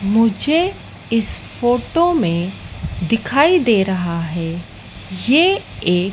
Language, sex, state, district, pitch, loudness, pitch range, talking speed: Hindi, female, Madhya Pradesh, Dhar, 225 Hz, -17 LUFS, 180-290 Hz, 100 wpm